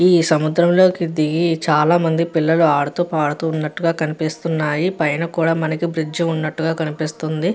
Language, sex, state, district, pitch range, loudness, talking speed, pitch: Telugu, female, Andhra Pradesh, Guntur, 155-170 Hz, -18 LUFS, 120 wpm, 160 Hz